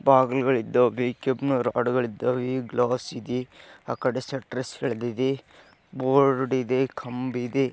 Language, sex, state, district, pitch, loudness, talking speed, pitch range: Kannada, male, Karnataka, Raichur, 130 Hz, -25 LUFS, 100 wpm, 125-135 Hz